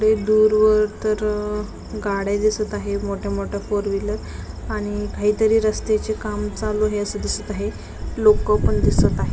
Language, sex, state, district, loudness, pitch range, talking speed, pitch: Marathi, female, Maharashtra, Nagpur, -21 LUFS, 205-215 Hz, 150 wpm, 210 Hz